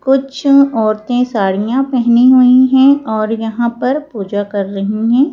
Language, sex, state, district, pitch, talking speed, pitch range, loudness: Hindi, female, Madhya Pradesh, Bhopal, 240 Hz, 145 wpm, 215-265 Hz, -12 LUFS